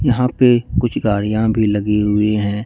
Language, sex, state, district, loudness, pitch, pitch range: Hindi, male, Jharkhand, Ranchi, -16 LUFS, 105 Hz, 105-120 Hz